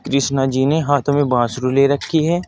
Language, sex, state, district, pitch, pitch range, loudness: Hindi, male, Uttar Pradesh, Saharanpur, 140 Hz, 135-145 Hz, -17 LUFS